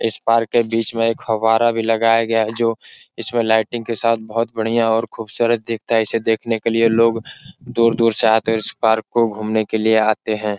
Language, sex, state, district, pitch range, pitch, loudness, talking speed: Hindi, male, Bihar, Araria, 110-115 Hz, 115 Hz, -18 LUFS, 225 wpm